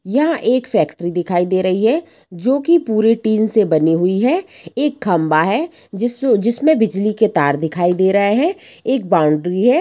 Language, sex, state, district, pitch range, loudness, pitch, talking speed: Hindi, female, Jharkhand, Sahebganj, 175-255 Hz, -16 LUFS, 215 Hz, 185 wpm